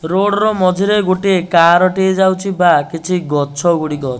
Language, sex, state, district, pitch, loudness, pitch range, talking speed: Odia, male, Odisha, Nuapada, 180 Hz, -13 LUFS, 165-190 Hz, 170 wpm